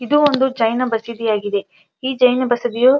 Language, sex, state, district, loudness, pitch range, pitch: Kannada, female, Karnataka, Dharwad, -18 LUFS, 230-260 Hz, 245 Hz